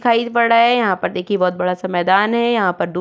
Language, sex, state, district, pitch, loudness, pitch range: Hindi, female, Uttar Pradesh, Jyotiba Phule Nagar, 200 Hz, -16 LUFS, 180-235 Hz